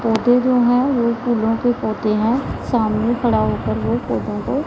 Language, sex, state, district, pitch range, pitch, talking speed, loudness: Hindi, female, Punjab, Pathankot, 215-245 Hz, 235 Hz, 180 wpm, -18 LUFS